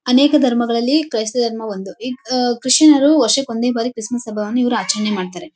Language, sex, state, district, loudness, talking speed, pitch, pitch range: Kannada, female, Karnataka, Bellary, -16 LUFS, 195 wpm, 240 Hz, 225-260 Hz